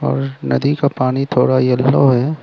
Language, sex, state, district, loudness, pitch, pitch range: Hindi, male, Arunachal Pradesh, Lower Dibang Valley, -15 LUFS, 130 Hz, 120-140 Hz